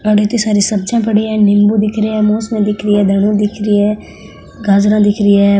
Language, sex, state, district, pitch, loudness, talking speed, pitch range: Marwari, female, Rajasthan, Nagaur, 210 Hz, -12 LUFS, 225 wpm, 205-215 Hz